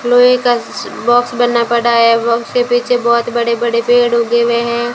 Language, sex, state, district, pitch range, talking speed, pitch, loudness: Hindi, female, Rajasthan, Jaisalmer, 235-245 Hz, 170 wpm, 235 Hz, -13 LUFS